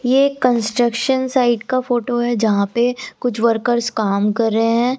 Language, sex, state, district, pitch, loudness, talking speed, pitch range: Hindi, female, Delhi, New Delhi, 240 Hz, -17 LUFS, 180 wpm, 225-250 Hz